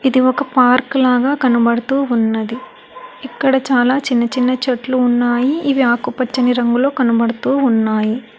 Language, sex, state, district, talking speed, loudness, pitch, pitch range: Telugu, female, Telangana, Hyderabad, 120 wpm, -15 LUFS, 255 Hz, 240-270 Hz